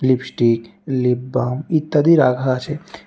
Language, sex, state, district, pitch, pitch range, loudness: Bengali, male, Tripura, West Tripura, 130 Hz, 125-155 Hz, -18 LUFS